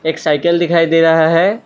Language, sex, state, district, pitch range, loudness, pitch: Hindi, male, Assam, Kamrup Metropolitan, 160-170 Hz, -12 LUFS, 165 Hz